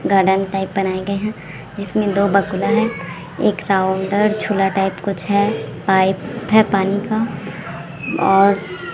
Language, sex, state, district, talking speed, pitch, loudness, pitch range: Hindi, female, Chhattisgarh, Raipur, 135 wpm, 195 Hz, -18 LUFS, 190-205 Hz